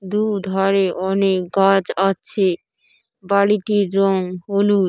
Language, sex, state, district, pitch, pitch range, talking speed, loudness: Bengali, female, West Bengal, Paschim Medinipur, 195 Hz, 190-200 Hz, 100 wpm, -18 LUFS